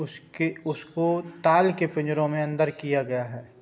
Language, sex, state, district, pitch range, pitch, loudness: Hindi, male, Uttar Pradesh, Budaun, 145-165 Hz, 155 Hz, -25 LUFS